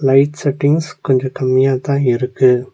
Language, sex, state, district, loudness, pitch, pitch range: Tamil, male, Tamil Nadu, Nilgiris, -15 LUFS, 135 Hz, 130-140 Hz